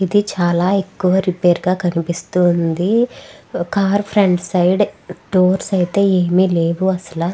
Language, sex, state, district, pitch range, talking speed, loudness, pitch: Telugu, female, Andhra Pradesh, Krishna, 175-195 Hz, 115 wpm, -16 LUFS, 185 Hz